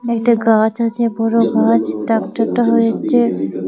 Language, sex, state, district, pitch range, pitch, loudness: Bengali, female, Tripura, West Tripura, 220-235 Hz, 230 Hz, -15 LUFS